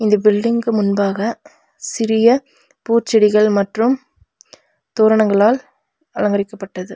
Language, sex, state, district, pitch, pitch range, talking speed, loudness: Tamil, female, Tamil Nadu, Nilgiris, 220 Hz, 205-235 Hz, 70 wpm, -16 LUFS